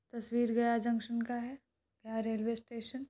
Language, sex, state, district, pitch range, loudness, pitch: Hindi, female, Bihar, Gaya, 230-240 Hz, -35 LUFS, 235 Hz